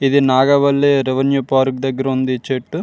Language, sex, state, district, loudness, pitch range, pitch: Telugu, male, Andhra Pradesh, Srikakulam, -16 LUFS, 130-140 Hz, 135 Hz